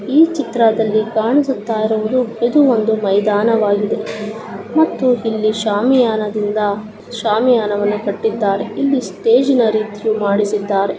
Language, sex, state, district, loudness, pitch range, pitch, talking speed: Kannada, female, Karnataka, Dakshina Kannada, -16 LUFS, 210-240 Hz, 220 Hz, 85 wpm